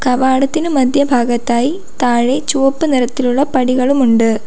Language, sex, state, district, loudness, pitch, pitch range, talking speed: Malayalam, female, Kerala, Kollam, -14 LUFS, 260 Hz, 245-280 Hz, 80 wpm